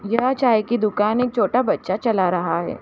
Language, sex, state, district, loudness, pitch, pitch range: Hindi, female, Jharkhand, Jamtara, -20 LUFS, 235 Hz, 215-245 Hz